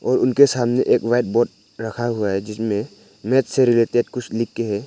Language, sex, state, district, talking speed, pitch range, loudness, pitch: Hindi, male, Arunachal Pradesh, Papum Pare, 210 wpm, 110-125 Hz, -19 LUFS, 120 Hz